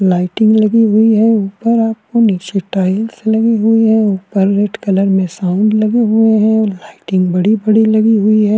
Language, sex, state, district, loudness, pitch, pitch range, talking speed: Hindi, male, Uttarakhand, Tehri Garhwal, -12 LUFS, 215 Hz, 195-220 Hz, 170 wpm